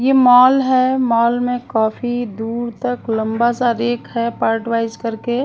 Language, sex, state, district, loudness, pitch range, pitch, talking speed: Hindi, female, Punjab, Pathankot, -17 LUFS, 230-245 Hz, 240 Hz, 165 wpm